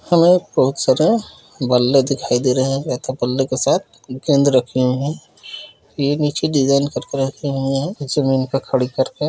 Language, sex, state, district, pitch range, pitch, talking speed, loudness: Kumaoni, male, Uttarakhand, Uttarkashi, 130-145 Hz, 135 Hz, 180 wpm, -18 LUFS